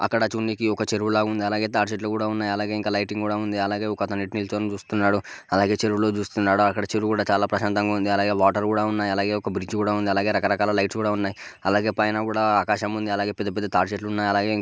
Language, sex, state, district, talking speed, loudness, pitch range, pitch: Telugu, male, Andhra Pradesh, Guntur, 205 wpm, -23 LUFS, 100-105 Hz, 105 Hz